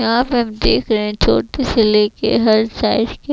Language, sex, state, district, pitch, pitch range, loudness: Hindi, female, Chhattisgarh, Raipur, 225 Hz, 215-240 Hz, -16 LUFS